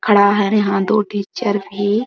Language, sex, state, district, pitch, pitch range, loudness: Hindi, female, Bihar, Araria, 205 Hz, 200-210 Hz, -17 LUFS